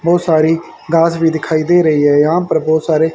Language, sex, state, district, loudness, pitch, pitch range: Hindi, male, Haryana, Charkhi Dadri, -13 LUFS, 160 Hz, 155-170 Hz